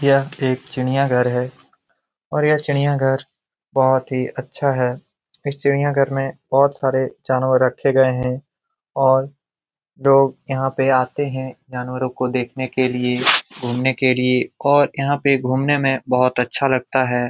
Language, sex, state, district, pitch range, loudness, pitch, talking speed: Hindi, male, Bihar, Jamui, 130-140 Hz, -19 LUFS, 130 Hz, 155 wpm